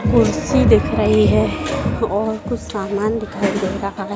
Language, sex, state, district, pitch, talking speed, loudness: Hindi, female, Madhya Pradesh, Dhar, 200 Hz, 160 wpm, -18 LUFS